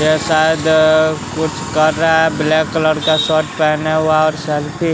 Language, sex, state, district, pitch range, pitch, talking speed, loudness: Hindi, male, Bihar, West Champaran, 155-160 Hz, 155 Hz, 180 wpm, -14 LUFS